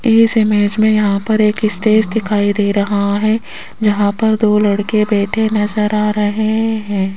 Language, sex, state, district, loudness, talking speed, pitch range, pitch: Hindi, female, Rajasthan, Jaipur, -14 LUFS, 165 wpm, 205-220 Hz, 210 Hz